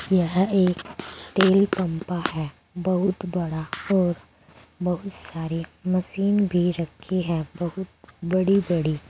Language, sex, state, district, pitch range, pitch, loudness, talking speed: Hindi, female, Uttar Pradesh, Saharanpur, 170-190 Hz, 180 Hz, -24 LUFS, 110 wpm